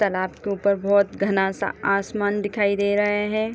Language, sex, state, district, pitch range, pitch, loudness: Hindi, female, Jharkhand, Sahebganj, 200-205 Hz, 200 Hz, -22 LUFS